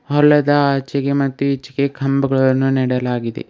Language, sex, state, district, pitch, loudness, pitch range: Kannada, male, Karnataka, Bidar, 135 Hz, -17 LUFS, 130-140 Hz